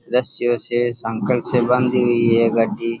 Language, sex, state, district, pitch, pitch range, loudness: Rajasthani, male, Rajasthan, Churu, 120 Hz, 115-125 Hz, -18 LUFS